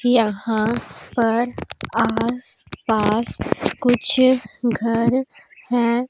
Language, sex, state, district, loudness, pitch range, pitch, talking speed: Hindi, female, Punjab, Pathankot, -20 LUFS, 230-245 Hz, 235 Hz, 70 wpm